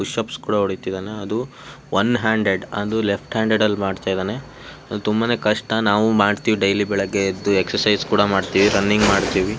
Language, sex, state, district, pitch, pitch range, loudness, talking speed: Kannada, male, Karnataka, Shimoga, 105 Hz, 100-110 Hz, -19 LUFS, 150 wpm